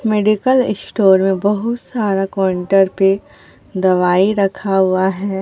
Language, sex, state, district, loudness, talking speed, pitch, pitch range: Hindi, female, Bihar, Katihar, -15 LUFS, 120 wpm, 195 Hz, 190-210 Hz